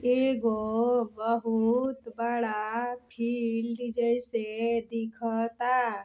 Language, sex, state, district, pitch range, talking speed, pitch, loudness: Bhojpuri, female, Uttar Pradesh, Deoria, 225-245 Hz, 60 wpm, 230 Hz, -29 LUFS